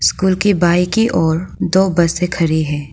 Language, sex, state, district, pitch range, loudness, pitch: Hindi, female, Arunachal Pradesh, Lower Dibang Valley, 165-190 Hz, -15 LUFS, 175 Hz